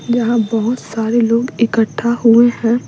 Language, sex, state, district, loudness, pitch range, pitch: Hindi, female, Bihar, Patna, -14 LUFS, 230-240 Hz, 235 Hz